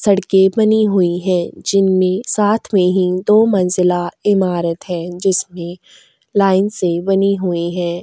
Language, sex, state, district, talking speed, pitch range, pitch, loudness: Hindi, female, Goa, North and South Goa, 135 wpm, 180-200 Hz, 185 Hz, -15 LUFS